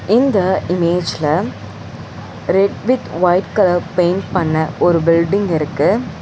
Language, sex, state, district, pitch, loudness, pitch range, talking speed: Tamil, female, Tamil Nadu, Chennai, 175 Hz, -16 LUFS, 150-185 Hz, 105 wpm